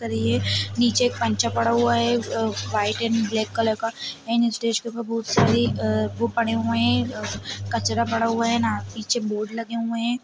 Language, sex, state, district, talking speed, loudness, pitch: Hindi, female, Chhattisgarh, Balrampur, 165 wpm, -23 LUFS, 205 Hz